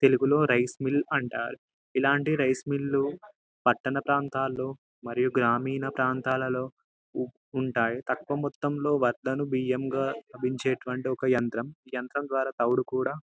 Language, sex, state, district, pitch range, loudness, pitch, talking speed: Telugu, male, Telangana, Karimnagar, 125-140 Hz, -28 LUFS, 130 Hz, 125 wpm